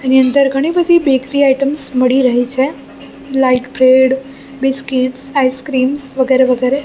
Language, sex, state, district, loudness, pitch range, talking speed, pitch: Gujarati, female, Gujarat, Gandhinagar, -13 LUFS, 260-275 Hz, 130 wpm, 265 Hz